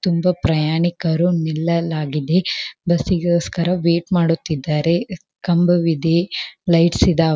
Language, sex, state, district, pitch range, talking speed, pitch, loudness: Kannada, female, Karnataka, Belgaum, 160-175 Hz, 75 wpm, 170 Hz, -18 LUFS